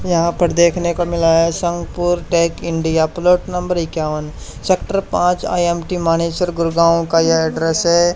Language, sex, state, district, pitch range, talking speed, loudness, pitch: Hindi, male, Haryana, Charkhi Dadri, 165-175 Hz, 160 wpm, -16 LUFS, 170 Hz